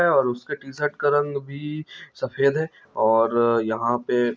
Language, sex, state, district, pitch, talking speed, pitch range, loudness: Hindi, male, Chhattisgarh, Bilaspur, 135 Hz, 165 wpm, 120-145 Hz, -23 LUFS